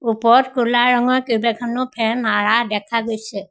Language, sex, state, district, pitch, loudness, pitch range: Assamese, female, Assam, Sonitpur, 235 Hz, -17 LUFS, 225-245 Hz